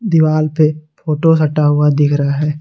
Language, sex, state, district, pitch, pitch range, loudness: Hindi, male, Jharkhand, Garhwa, 150 Hz, 150-155 Hz, -14 LUFS